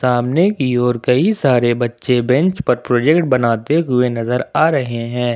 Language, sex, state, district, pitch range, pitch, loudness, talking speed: Hindi, male, Jharkhand, Ranchi, 120-140 Hz, 125 Hz, -16 LUFS, 170 wpm